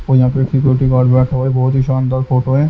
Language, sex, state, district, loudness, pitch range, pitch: Hindi, male, Haryana, Jhajjar, -14 LUFS, 130-135 Hz, 130 Hz